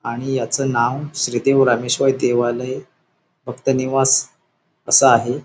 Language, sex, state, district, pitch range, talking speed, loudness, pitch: Marathi, male, Maharashtra, Sindhudurg, 120-135 Hz, 110 wpm, -17 LUFS, 130 Hz